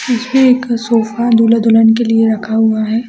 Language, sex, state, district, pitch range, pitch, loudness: Hindi, female, Chhattisgarh, Raigarh, 225-240 Hz, 230 Hz, -12 LUFS